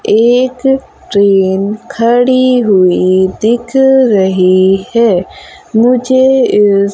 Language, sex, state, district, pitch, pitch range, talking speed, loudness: Hindi, female, Madhya Pradesh, Umaria, 230 Hz, 195-255 Hz, 80 wpm, -10 LUFS